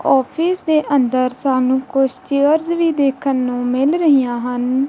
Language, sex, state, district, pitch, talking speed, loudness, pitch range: Punjabi, female, Punjab, Kapurthala, 270 Hz, 145 wpm, -17 LUFS, 255-300 Hz